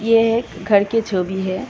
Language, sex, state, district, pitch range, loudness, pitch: Hindi, female, Tripura, West Tripura, 190-225 Hz, -18 LUFS, 210 Hz